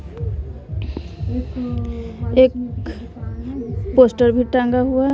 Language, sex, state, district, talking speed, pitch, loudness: Hindi, female, Bihar, West Champaran, 70 wpm, 235 Hz, -19 LUFS